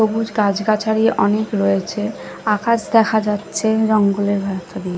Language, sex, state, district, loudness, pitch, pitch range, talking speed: Bengali, female, Odisha, Khordha, -18 LUFS, 210 Hz, 200-220 Hz, 110 wpm